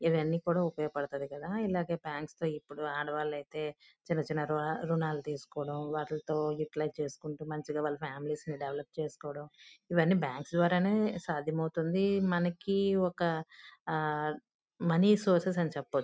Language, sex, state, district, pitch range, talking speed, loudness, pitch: Telugu, female, Andhra Pradesh, Guntur, 150-175 Hz, 130 wpm, -33 LUFS, 155 Hz